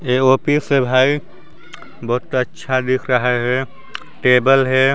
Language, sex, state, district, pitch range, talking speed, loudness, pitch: Hindi, male, Chhattisgarh, Sarguja, 125-135 Hz, 135 wpm, -16 LUFS, 130 Hz